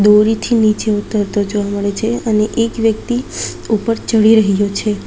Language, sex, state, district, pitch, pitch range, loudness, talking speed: Gujarati, female, Gujarat, Valsad, 215 Hz, 205-225 Hz, -15 LUFS, 155 wpm